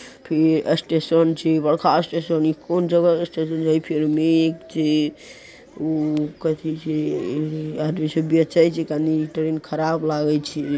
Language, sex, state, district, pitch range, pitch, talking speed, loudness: Hindi, male, Bihar, Araria, 155-165 Hz, 155 Hz, 145 wpm, -21 LUFS